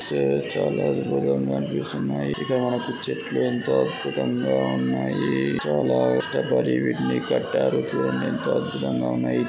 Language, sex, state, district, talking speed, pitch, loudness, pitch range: Telugu, male, Andhra Pradesh, Srikakulam, 95 wpm, 65 Hz, -24 LUFS, 65-70 Hz